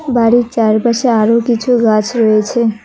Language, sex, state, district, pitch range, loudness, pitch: Bengali, female, West Bengal, Cooch Behar, 220-240 Hz, -12 LUFS, 230 Hz